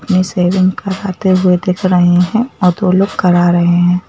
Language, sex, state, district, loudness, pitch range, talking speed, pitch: Hindi, female, Madhya Pradesh, Bhopal, -12 LUFS, 180-190 Hz, 190 wpm, 185 Hz